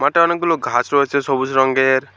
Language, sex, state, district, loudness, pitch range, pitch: Bengali, male, West Bengal, Alipurduar, -16 LUFS, 130-165 Hz, 140 Hz